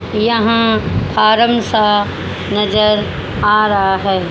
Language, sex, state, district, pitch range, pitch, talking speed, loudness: Hindi, female, Haryana, Charkhi Dadri, 205-225 Hz, 210 Hz, 95 wpm, -14 LUFS